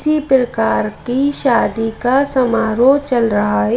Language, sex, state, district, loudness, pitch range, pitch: Hindi, female, Madhya Pradesh, Bhopal, -15 LUFS, 225-270 Hz, 245 Hz